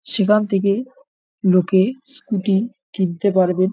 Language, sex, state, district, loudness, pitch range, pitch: Bengali, male, West Bengal, North 24 Parganas, -19 LUFS, 190-230 Hz, 200 Hz